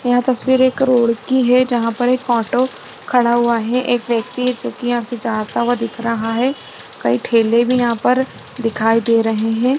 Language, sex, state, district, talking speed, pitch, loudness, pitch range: Hindi, female, Chhattisgarh, Rajnandgaon, 210 wpm, 240 Hz, -17 LUFS, 230-250 Hz